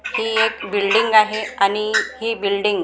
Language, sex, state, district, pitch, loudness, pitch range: Marathi, female, Maharashtra, Gondia, 215 Hz, -18 LUFS, 200-225 Hz